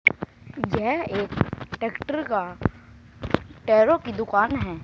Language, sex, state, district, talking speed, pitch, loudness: Hindi, male, Haryana, Charkhi Dadri, 100 wpm, 205 Hz, -24 LUFS